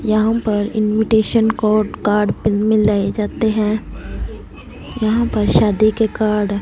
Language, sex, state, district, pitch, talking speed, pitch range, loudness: Hindi, female, Punjab, Fazilka, 215 Hz, 135 wpm, 210-220 Hz, -16 LUFS